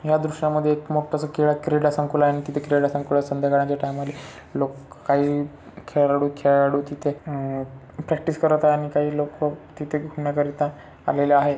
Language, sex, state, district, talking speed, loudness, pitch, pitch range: Marathi, male, Maharashtra, Chandrapur, 135 wpm, -23 LUFS, 145 Hz, 140-150 Hz